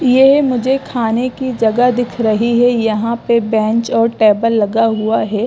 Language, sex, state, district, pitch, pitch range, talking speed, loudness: Hindi, female, Gujarat, Gandhinagar, 230 Hz, 220-250 Hz, 175 wpm, -14 LUFS